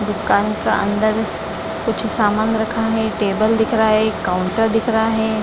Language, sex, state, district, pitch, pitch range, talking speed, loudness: Hindi, female, Bihar, Lakhisarai, 220 Hz, 215-225 Hz, 175 wpm, -18 LUFS